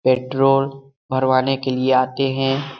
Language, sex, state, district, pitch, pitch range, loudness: Hindi, male, Bihar, Lakhisarai, 135 Hz, 130-135 Hz, -19 LUFS